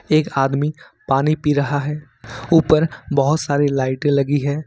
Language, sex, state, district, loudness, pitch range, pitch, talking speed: Hindi, male, Jharkhand, Ranchi, -18 LUFS, 135-155 Hz, 145 Hz, 155 wpm